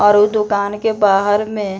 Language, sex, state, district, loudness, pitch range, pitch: Bhojpuri, female, Bihar, East Champaran, -15 LUFS, 205-210 Hz, 205 Hz